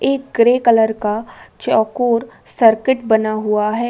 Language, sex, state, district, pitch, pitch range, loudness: Hindi, female, Uttar Pradesh, Budaun, 225 Hz, 220-240 Hz, -16 LUFS